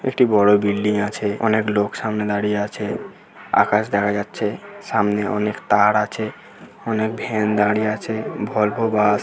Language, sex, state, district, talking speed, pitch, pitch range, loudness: Bengali, male, West Bengal, North 24 Parganas, 145 wpm, 105 Hz, 105-110 Hz, -20 LUFS